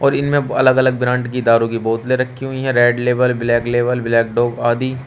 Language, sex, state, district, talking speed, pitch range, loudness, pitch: Hindi, male, Uttar Pradesh, Shamli, 235 wpm, 120-130 Hz, -16 LUFS, 125 Hz